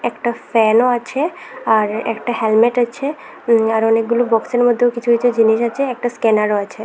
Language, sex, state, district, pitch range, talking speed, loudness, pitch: Bengali, female, Tripura, West Tripura, 225-245 Hz, 165 wpm, -16 LUFS, 235 Hz